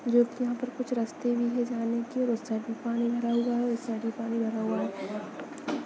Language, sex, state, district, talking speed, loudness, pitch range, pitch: Hindi, female, Chhattisgarh, Bastar, 235 wpm, -30 LUFS, 230-245 Hz, 240 Hz